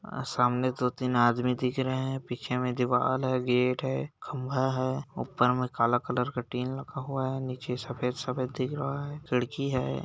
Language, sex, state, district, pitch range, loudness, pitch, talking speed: Hindi, male, Bihar, Bhagalpur, 125-130 Hz, -29 LUFS, 125 Hz, 185 wpm